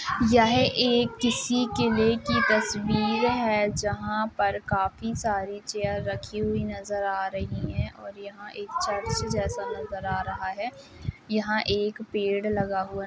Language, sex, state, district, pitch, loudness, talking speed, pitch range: Hindi, female, Uttar Pradesh, Jalaun, 210 Hz, -26 LUFS, 150 wpm, 200-230 Hz